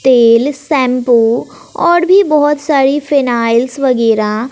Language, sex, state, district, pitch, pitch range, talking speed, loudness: Hindi, female, Bihar, West Champaran, 260 Hz, 235-290 Hz, 105 wpm, -11 LUFS